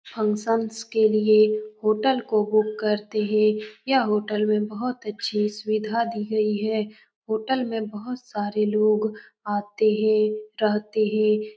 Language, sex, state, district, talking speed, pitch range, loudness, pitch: Hindi, female, Bihar, Saran, 135 wpm, 215-220 Hz, -24 LUFS, 215 Hz